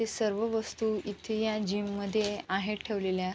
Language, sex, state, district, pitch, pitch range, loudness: Marathi, female, Maharashtra, Sindhudurg, 210 Hz, 200-220 Hz, -32 LUFS